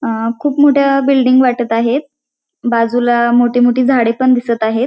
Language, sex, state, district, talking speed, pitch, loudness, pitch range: Marathi, female, Maharashtra, Pune, 160 wpm, 245 Hz, -13 LUFS, 235-275 Hz